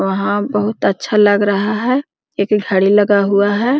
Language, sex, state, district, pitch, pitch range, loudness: Hindi, female, Bihar, Jahanabad, 205 Hz, 190-210 Hz, -15 LUFS